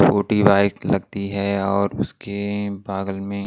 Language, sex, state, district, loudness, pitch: Hindi, male, Maharashtra, Washim, -21 LUFS, 100 Hz